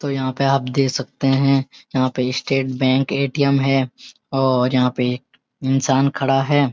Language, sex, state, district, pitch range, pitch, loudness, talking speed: Hindi, male, Uttarakhand, Uttarkashi, 130-135 Hz, 135 Hz, -19 LUFS, 185 wpm